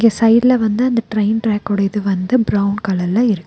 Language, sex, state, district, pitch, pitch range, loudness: Tamil, female, Tamil Nadu, Nilgiris, 215 Hz, 200-230 Hz, -16 LUFS